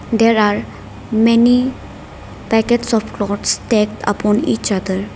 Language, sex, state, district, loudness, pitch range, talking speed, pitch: English, female, Arunachal Pradesh, Lower Dibang Valley, -16 LUFS, 205-230 Hz, 115 wpm, 215 Hz